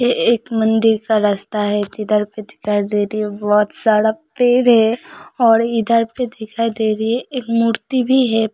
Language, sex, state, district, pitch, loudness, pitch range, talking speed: Hindi, female, Uttar Pradesh, Hamirpur, 225 Hz, -17 LUFS, 210-235 Hz, 160 wpm